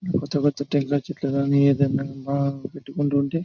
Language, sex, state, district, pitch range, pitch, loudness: Telugu, male, Andhra Pradesh, Chittoor, 140-145 Hz, 140 Hz, -23 LUFS